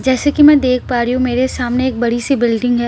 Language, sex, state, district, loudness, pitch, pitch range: Hindi, female, Bihar, Patna, -14 LUFS, 250 Hz, 240-260 Hz